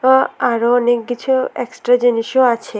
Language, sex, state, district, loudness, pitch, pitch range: Bengali, female, Tripura, West Tripura, -16 LUFS, 245 Hz, 240-255 Hz